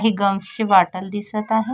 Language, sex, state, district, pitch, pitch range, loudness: Marathi, female, Maharashtra, Sindhudurg, 205 Hz, 195-220 Hz, -20 LUFS